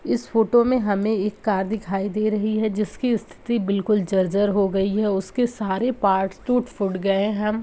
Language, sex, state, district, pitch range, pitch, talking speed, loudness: Hindi, male, Bihar, Saharsa, 195-220 Hz, 210 Hz, 180 wpm, -22 LUFS